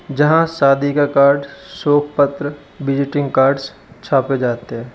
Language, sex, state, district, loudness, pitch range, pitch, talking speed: Hindi, male, Uttar Pradesh, Lalitpur, -16 LUFS, 135-145 Hz, 140 Hz, 135 wpm